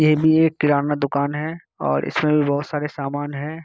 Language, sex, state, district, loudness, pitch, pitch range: Hindi, male, Bihar, Kishanganj, -21 LUFS, 145 Hz, 140-155 Hz